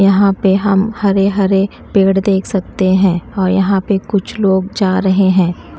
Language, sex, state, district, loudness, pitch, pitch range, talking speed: Hindi, female, Chhattisgarh, Raipur, -13 LUFS, 195 Hz, 190-200 Hz, 175 wpm